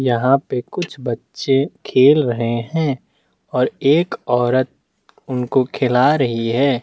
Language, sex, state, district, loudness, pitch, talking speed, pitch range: Hindi, male, Chhattisgarh, Bastar, -18 LUFS, 130 Hz, 115 wpm, 125-140 Hz